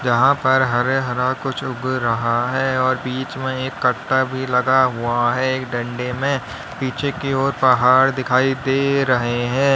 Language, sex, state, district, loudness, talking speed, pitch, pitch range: Hindi, male, Uttar Pradesh, Lalitpur, -19 LUFS, 170 wpm, 130 Hz, 125-135 Hz